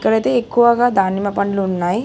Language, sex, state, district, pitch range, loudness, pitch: Telugu, female, Telangana, Hyderabad, 195-240 Hz, -16 LUFS, 210 Hz